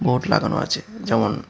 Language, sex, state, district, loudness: Bengali, male, Tripura, West Tripura, -22 LUFS